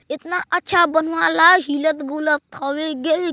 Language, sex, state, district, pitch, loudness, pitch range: Hindi, female, Chhattisgarh, Balrampur, 315 Hz, -18 LUFS, 295-345 Hz